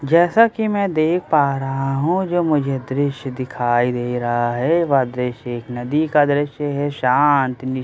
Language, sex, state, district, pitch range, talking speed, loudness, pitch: Hindi, male, Bihar, Katihar, 125-155 Hz, 175 wpm, -19 LUFS, 140 Hz